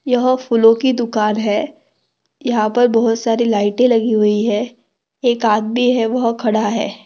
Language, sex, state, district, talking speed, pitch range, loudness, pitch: Hindi, female, Maharashtra, Dhule, 160 wpm, 215-245 Hz, -16 LUFS, 230 Hz